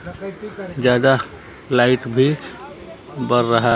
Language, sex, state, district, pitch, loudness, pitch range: Hindi, male, Bihar, Kaimur, 130 Hz, -18 LUFS, 120-150 Hz